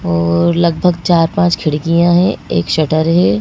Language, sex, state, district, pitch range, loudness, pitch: Hindi, female, Madhya Pradesh, Bhopal, 115-170 Hz, -13 LUFS, 165 Hz